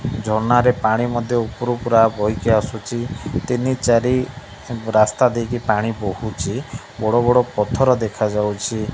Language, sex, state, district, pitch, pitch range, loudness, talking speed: Odia, male, Odisha, Malkangiri, 115 Hz, 110-120 Hz, -19 LUFS, 125 wpm